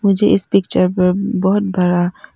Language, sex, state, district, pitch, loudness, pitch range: Hindi, female, Arunachal Pradesh, Papum Pare, 190 Hz, -15 LUFS, 180-200 Hz